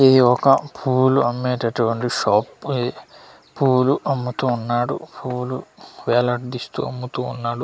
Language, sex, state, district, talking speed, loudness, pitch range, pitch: Telugu, male, Andhra Pradesh, Manyam, 100 wpm, -20 LUFS, 120-130 Hz, 125 Hz